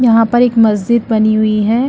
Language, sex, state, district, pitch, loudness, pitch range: Hindi, female, Chhattisgarh, Bilaspur, 225 Hz, -12 LUFS, 215-240 Hz